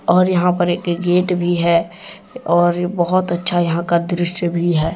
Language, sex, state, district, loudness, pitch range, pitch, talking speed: Hindi, male, Jharkhand, Deoghar, -17 LUFS, 170-180 Hz, 175 Hz, 180 wpm